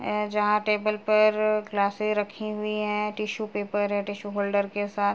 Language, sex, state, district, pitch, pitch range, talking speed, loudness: Hindi, female, Uttar Pradesh, Jalaun, 210 Hz, 205-215 Hz, 175 wpm, -26 LUFS